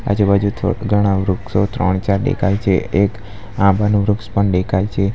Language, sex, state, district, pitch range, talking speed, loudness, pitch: Gujarati, male, Gujarat, Valsad, 100-105 Hz, 150 wpm, -17 LUFS, 100 Hz